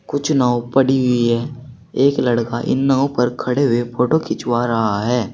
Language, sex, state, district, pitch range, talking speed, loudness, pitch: Hindi, male, Uttar Pradesh, Saharanpur, 120-135 Hz, 180 wpm, -17 LUFS, 125 Hz